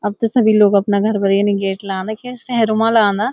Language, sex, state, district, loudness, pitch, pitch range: Garhwali, female, Uttarakhand, Uttarkashi, -15 LUFS, 210 Hz, 200-225 Hz